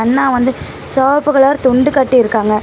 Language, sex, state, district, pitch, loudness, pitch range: Tamil, female, Tamil Nadu, Namakkal, 260 Hz, -12 LUFS, 245-275 Hz